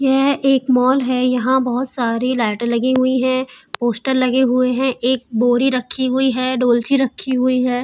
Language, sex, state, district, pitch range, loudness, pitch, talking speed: Hindi, female, Uttar Pradesh, Hamirpur, 245-260 Hz, -17 LUFS, 255 Hz, 185 wpm